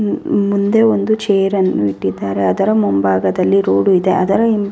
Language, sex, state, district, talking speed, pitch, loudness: Kannada, female, Karnataka, Raichur, 150 wpm, 190 Hz, -14 LUFS